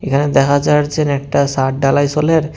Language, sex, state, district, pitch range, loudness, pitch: Bengali, male, Tripura, West Tripura, 140-150 Hz, -14 LUFS, 145 Hz